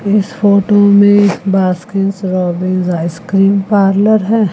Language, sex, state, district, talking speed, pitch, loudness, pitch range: Hindi, female, Chandigarh, Chandigarh, 105 wpm, 200 Hz, -11 LUFS, 185-205 Hz